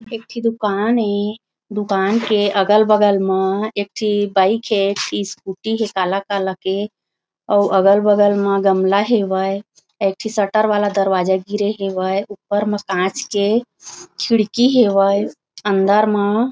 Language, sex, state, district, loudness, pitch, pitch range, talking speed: Chhattisgarhi, female, Chhattisgarh, Raigarh, -17 LUFS, 205 Hz, 195-215 Hz, 130 wpm